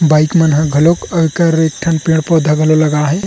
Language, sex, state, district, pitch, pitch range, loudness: Chhattisgarhi, male, Chhattisgarh, Rajnandgaon, 160 Hz, 155-165 Hz, -12 LUFS